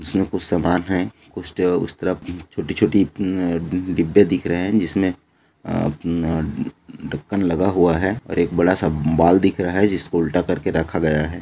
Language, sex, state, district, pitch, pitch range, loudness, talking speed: Hindi, male, Chhattisgarh, Bilaspur, 90 Hz, 85-95 Hz, -20 LUFS, 190 wpm